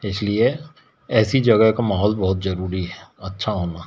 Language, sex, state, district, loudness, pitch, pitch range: Hindi, male, Bihar, Patna, -20 LUFS, 100 Hz, 95-110 Hz